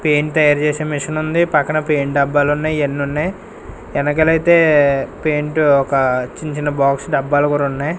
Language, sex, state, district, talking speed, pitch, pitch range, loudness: Telugu, male, Andhra Pradesh, Sri Satya Sai, 150 wpm, 150 Hz, 140-155 Hz, -16 LUFS